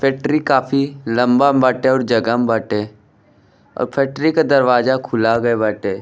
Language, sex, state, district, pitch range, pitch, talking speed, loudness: Bhojpuri, male, Uttar Pradesh, Deoria, 115-140 Hz, 125 Hz, 160 wpm, -16 LUFS